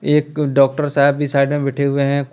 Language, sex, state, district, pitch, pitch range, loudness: Hindi, male, Jharkhand, Deoghar, 140 Hz, 140-145 Hz, -16 LUFS